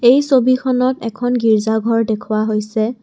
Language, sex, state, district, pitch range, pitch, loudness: Assamese, female, Assam, Kamrup Metropolitan, 220-250 Hz, 230 Hz, -16 LUFS